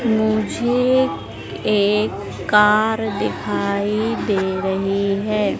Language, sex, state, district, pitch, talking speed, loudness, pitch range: Hindi, female, Madhya Pradesh, Dhar, 210 Hz, 75 wpm, -19 LUFS, 200-220 Hz